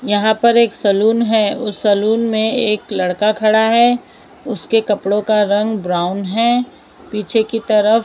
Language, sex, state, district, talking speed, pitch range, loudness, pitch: Hindi, female, Maharashtra, Mumbai Suburban, 155 wpm, 205-230 Hz, -15 LUFS, 220 Hz